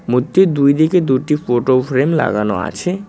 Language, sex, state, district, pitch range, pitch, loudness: Bengali, male, West Bengal, Cooch Behar, 125-165 Hz, 140 Hz, -15 LUFS